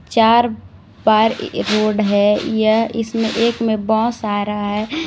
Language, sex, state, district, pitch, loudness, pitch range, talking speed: Hindi, female, Jharkhand, Palamu, 220 Hz, -17 LUFS, 210-230 Hz, 140 wpm